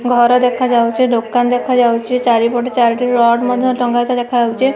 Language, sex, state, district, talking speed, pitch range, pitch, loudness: Odia, female, Odisha, Malkangiri, 140 wpm, 235-250 Hz, 245 Hz, -14 LUFS